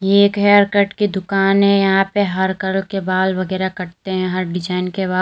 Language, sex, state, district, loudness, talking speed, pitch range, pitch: Hindi, female, Uttar Pradesh, Lalitpur, -17 LUFS, 230 wpm, 185-200 Hz, 190 Hz